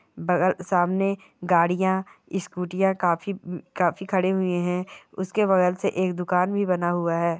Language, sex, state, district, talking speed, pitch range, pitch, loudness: Hindi, female, Bihar, Darbhanga, 155 wpm, 175-190 Hz, 185 Hz, -24 LUFS